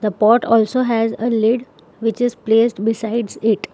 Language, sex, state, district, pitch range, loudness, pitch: English, female, Telangana, Hyderabad, 220-235 Hz, -17 LUFS, 225 Hz